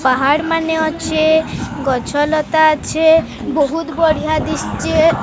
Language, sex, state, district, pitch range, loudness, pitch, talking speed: Odia, female, Odisha, Sambalpur, 295-320 Hz, -15 LUFS, 315 Hz, 105 wpm